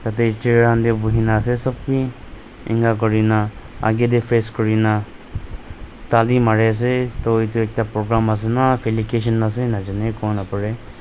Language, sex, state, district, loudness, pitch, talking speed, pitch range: Nagamese, male, Nagaland, Dimapur, -19 LUFS, 115 Hz, 145 wpm, 110-120 Hz